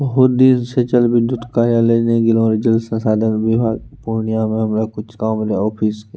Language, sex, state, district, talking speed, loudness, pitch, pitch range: Maithili, male, Bihar, Purnia, 195 wpm, -16 LUFS, 115 Hz, 110-120 Hz